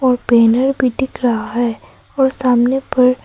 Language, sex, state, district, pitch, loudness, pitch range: Hindi, female, Arunachal Pradesh, Papum Pare, 250 Hz, -15 LUFS, 240-265 Hz